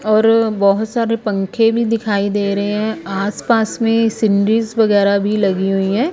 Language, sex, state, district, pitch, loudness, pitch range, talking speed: Hindi, female, Punjab, Kapurthala, 215 Hz, -16 LUFS, 200-225 Hz, 175 wpm